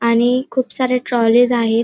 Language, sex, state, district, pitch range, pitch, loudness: Marathi, female, Maharashtra, Pune, 235-255 Hz, 245 Hz, -16 LUFS